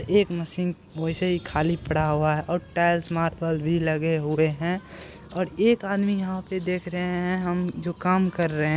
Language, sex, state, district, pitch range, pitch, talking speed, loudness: Hindi, male, Bihar, Kishanganj, 160-180 Hz, 175 Hz, 200 wpm, -25 LUFS